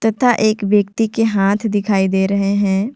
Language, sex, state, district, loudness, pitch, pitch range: Hindi, female, Jharkhand, Ranchi, -16 LUFS, 205 Hz, 200-220 Hz